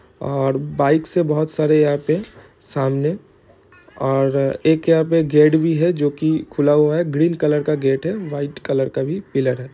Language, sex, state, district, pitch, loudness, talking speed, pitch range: Hindi, male, Bihar, East Champaran, 150 Hz, -18 LUFS, 190 wpm, 140-160 Hz